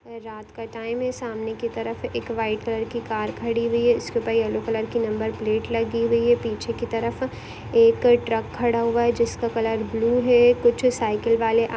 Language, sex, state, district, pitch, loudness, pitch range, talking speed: Hindi, female, Rajasthan, Nagaur, 230 Hz, -23 LUFS, 225-235 Hz, 200 wpm